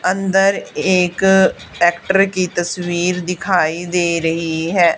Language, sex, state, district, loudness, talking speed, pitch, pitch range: Hindi, female, Haryana, Charkhi Dadri, -16 LUFS, 110 wpm, 180 Hz, 175-190 Hz